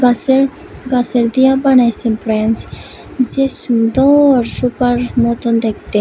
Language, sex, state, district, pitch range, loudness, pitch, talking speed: Bengali, female, Tripura, West Tripura, 235-265 Hz, -14 LUFS, 245 Hz, 100 wpm